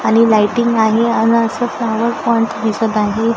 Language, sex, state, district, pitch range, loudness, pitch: Marathi, female, Maharashtra, Gondia, 220-235 Hz, -14 LUFS, 225 Hz